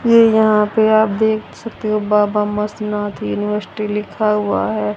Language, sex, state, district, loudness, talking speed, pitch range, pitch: Hindi, female, Haryana, Rohtak, -17 LUFS, 155 wpm, 210-220 Hz, 210 Hz